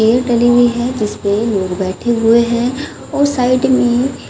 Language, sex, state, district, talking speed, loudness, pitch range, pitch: Hindi, male, Haryana, Charkhi Dadri, 165 wpm, -14 LUFS, 225-250 Hz, 240 Hz